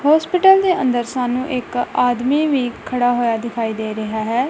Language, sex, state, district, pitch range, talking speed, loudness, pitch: Punjabi, female, Punjab, Kapurthala, 235-280 Hz, 175 wpm, -18 LUFS, 245 Hz